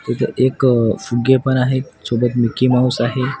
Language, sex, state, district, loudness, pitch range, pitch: Marathi, male, Maharashtra, Washim, -17 LUFS, 120-130 Hz, 125 Hz